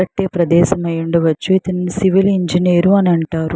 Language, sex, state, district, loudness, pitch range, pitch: Telugu, female, Andhra Pradesh, Chittoor, -15 LUFS, 170-190 Hz, 180 Hz